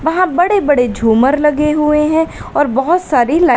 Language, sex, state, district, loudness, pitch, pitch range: Hindi, female, Uttar Pradesh, Lalitpur, -13 LUFS, 300 Hz, 270-325 Hz